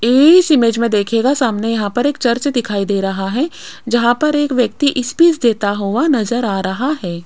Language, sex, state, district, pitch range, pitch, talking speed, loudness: Hindi, female, Rajasthan, Jaipur, 210-285 Hz, 240 Hz, 200 wpm, -15 LUFS